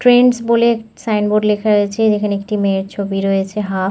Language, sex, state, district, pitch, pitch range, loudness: Bengali, female, West Bengal, North 24 Parganas, 210 Hz, 195-220 Hz, -16 LUFS